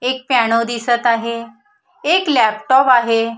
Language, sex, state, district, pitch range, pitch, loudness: Marathi, female, Maharashtra, Solapur, 230-260 Hz, 235 Hz, -15 LUFS